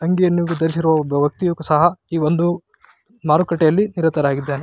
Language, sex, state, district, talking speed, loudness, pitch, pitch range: Kannada, male, Karnataka, Raichur, 115 wpm, -18 LUFS, 165 Hz, 155-175 Hz